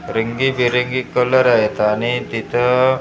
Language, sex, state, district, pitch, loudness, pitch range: Marathi, male, Maharashtra, Gondia, 125 Hz, -17 LUFS, 120-130 Hz